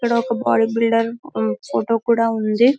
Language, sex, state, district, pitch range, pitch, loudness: Telugu, female, Telangana, Karimnagar, 225-235 Hz, 230 Hz, -19 LUFS